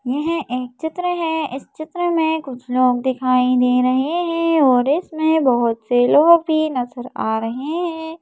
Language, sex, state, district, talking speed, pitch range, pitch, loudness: Hindi, female, Madhya Pradesh, Bhopal, 170 wpm, 250-320 Hz, 285 Hz, -18 LUFS